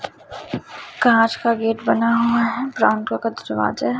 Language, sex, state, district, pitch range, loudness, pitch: Hindi, male, Chhattisgarh, Raipur, 220-235 Hz, -19 LUFS, 230 Hz